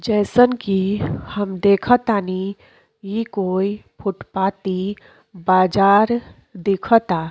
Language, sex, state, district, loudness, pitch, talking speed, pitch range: Bhojpuri, female, Uttar Pradesh, Deoria, -19 LUFS, 200 Hz, 80 wpm, 190-215 Hz